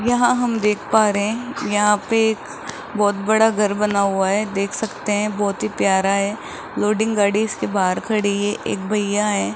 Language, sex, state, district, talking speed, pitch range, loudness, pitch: Hindi, male, Rajasthan, Jaipur, 190 wpm, 200-220 Hz, -19 LUFS, 210 Hz